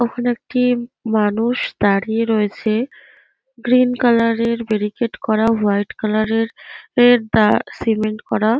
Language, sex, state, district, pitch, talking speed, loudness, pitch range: Bengali, female, West Bengal, North 24 Parganas, 230 Hz, 120 wpm, -18 LUFS, 215-245 Hz